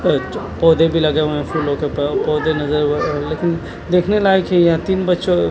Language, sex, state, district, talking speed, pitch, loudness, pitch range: Hindi, male, Chandigarh, Chandigarh, 220 wpm, 160 Hz, -17 LUFS, 150-180 Hz